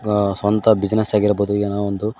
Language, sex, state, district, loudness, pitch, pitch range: Kannada, male, Karnataka, Koppal, -18 LUFS, 105 Hz, 100-105 Hz